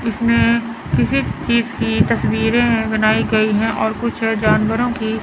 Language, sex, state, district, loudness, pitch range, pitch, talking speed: Hindi, male, Chandigarh, Chandigarh, -17 LUFS, 220-235 Hz, 225 Hz, 160 wpm